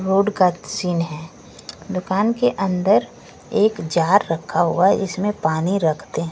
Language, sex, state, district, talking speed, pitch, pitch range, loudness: Hindi, female, Bihar, West Champaran, 135 wpm, 185 Hz, 165-200 Hz, -20 LUFS